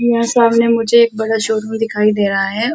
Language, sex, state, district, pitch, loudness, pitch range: Hindi, female, Uttar Pradesh, Muzaffarnagar, 225 Hz, -14 LUFS, 215-235 Hz